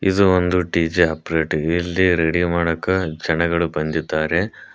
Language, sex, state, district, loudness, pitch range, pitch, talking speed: Kannada, male, Karnataka, Koppal, -19 LUFS, 80-90 Hz, 85 Hz, 115 wpm